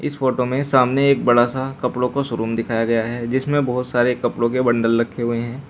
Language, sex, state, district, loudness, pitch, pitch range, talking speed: Hindi, male, Uttar Pradesh, Shamli, -19 LUFS, 125 Hz, 120-130 Hz, 230 wpm